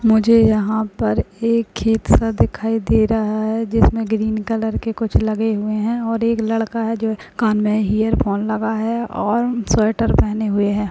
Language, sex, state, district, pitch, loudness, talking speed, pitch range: Hindi, female, Bihar, Jahanabad, 220 Hz, -18 LUFS, 180 wpm, 215-225 Hz